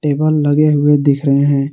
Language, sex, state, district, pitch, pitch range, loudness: Hindi, male, Jharkhand, Garhwa, 145 Hz, 140-150 Hz, -13 LUFS